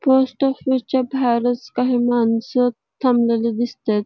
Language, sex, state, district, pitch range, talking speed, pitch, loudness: Marathi, female, Karnataka, Belgaum, 235-260 Hz, 135 wpm, 245 Hz, -19 LUFS